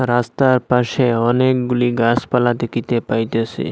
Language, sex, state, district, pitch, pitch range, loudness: Bengali, male, Assam, Hailakandi, 120 Hz, 120-125 Hz, -17 LUFS